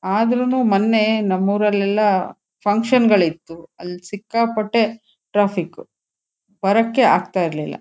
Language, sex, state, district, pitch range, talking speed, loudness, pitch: Kannada, female, Karnataka, Shimoga, 180-220 Hz, 100 wpm, -18 LUFS, 205 Hz